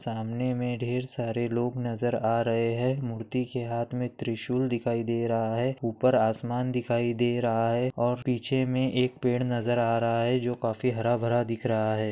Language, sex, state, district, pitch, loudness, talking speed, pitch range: Bhojpuri, male, Bihar, Saran, 120 Hz, -28 LUFS, 195 wpm, 115-125 Hz